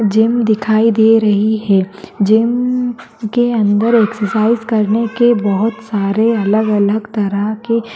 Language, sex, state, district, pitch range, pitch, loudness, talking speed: Hindi, female, Maharashtra, Aurangabad, 210-230 Hz, 220 Hz, -14 LUFS, 120 wpm